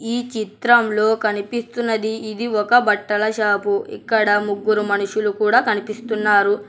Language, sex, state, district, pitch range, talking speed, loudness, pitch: Telugu, male, Telangana, Hyderabad, 205-225 Hz, 105 wpm, -19 LUFS, 215 Hz